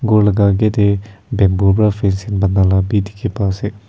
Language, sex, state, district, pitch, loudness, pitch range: Nagamese, male, Nagaland, Kohima, 100 Hz, -15 LUFS, 95-105 Hz